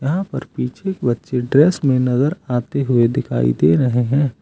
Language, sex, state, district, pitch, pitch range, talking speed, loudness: Hindi, male, Uttar Pradesh, Lucknow, 130 Hz, 120-140 Hz, 190 wpm, -18 LUFS